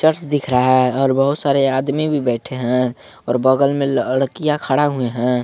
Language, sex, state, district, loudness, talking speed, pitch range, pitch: Hindi, male, Jharkhand, Garhwa, -17 LUFS, 200 wpm, 125-145 Hz, 135 Hz